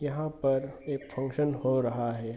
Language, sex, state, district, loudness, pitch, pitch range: Hindi, male, Bihar, East Champaran, -31 LUFS, 135 Hz, 130-145 Hz